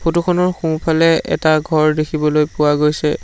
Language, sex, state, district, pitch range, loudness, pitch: Assamese, male, Assam, Sonitpur, 150-165 Hz, -16 LUFS, 155 Hz